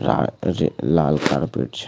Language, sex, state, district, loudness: Maithili, male, Bihar, Supaul, -21 LUFS